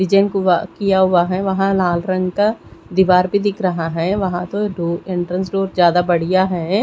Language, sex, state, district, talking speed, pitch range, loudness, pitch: Hindi, female, Odisha, Khordha, 195 wpm, 175-195 Hz, -17 LUFS, 185 Hz